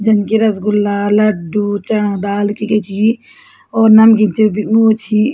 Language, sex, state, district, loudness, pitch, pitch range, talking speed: Garhwali, female, Uttarakhand, Tehri Garhwal, -13 LUFS, 215 Hz, 205-220 Hz, 155 wpm